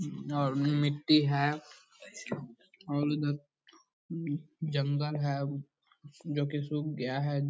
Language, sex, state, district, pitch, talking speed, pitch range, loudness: Hindi, male, Bihar, Purnia, 145 Hz, 95 wpm, 145-150 Hz, -32 LUFS